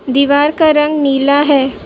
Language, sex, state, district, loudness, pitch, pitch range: Hindi, female, Uttar Pradesh, Budaun, -11 LUFS, 285 Hz, 275-295 Hz